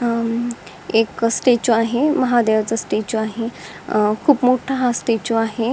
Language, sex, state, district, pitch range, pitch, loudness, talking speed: Marathi, female, Maharashtra, Dhule, 225-245 Hz, 230 Hz, -18 LUFS, 115 wpm